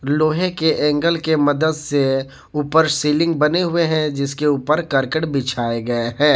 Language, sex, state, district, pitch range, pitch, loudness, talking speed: Hindi, male, Jharkhand, Garhwa, 140-160 Hz, 150 Hz, -18 LUFS, 160 wpm